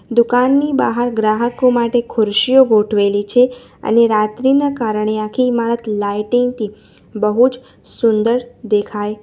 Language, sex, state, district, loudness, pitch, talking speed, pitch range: Gujarati, female, Gujarat, Valsad, -15 LUFS, 230 Hz, 125 wpm, 215-245 Hz